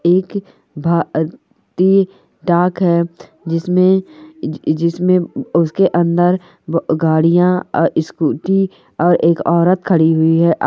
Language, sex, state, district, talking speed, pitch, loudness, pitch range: Hindi, female, Andhra Pradesh, Guntur, 110 wpm, 175 Hz, -15 LUFS, 165-185 Hz